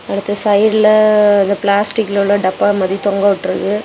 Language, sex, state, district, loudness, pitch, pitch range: Tamil, female, Tamil Nadu, Kanyakumari, -13 LUFS, 205 Hz, 200-210 Hz